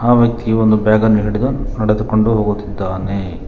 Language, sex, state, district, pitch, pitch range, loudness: Kannada, male, Karnataka, Bangalore, 110 Hz, 105-115 Hz, -15 LUFS